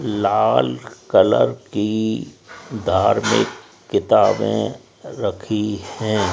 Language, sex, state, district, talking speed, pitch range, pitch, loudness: Hindi, male, Rajasthan, Jaipur, 65 wpm, 100-110 Hz, 105 Hz, -19 LUFS